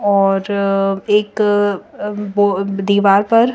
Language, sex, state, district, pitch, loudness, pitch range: Hindi, female, Chandigarh, Chandigarh, 205 Hz, -16 LUFS, 195-210 Hz